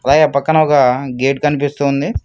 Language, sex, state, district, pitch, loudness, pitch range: Telugu, male, Telangana, Mahabubabad, 140 Hz, -14 LUFS, 135-150 Hz